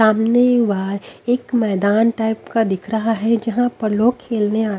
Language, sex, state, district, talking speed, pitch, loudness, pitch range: Hindi, female, Haryana, Rohtak, 175 wpm, 220 Hz, -18 LUFS, 215-235 Hz